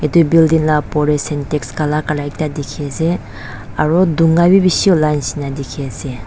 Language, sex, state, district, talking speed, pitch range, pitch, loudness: Nagamese, female, Nagaland, Dimapur, 170 wpm, 140-165 Hz, 150 Hz, -15 LUFS